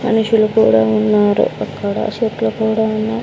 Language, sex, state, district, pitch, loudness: Telugu, female, Andhra Pradesh, Sri Satya Sai, 220 Hz, -15 LUFS